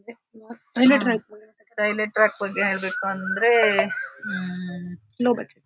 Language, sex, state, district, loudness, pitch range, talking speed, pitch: Kannada, female, Karnataka, Shimoga, -22 LUFS, 195-235 Hz, 95 wpm, 215 Hz